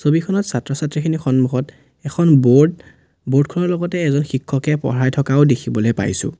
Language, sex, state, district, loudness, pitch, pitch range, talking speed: Assamese, male, Assam, Sonitpur, -17 LUFS, 140 Hz, 130-160 Hz, 130 wpm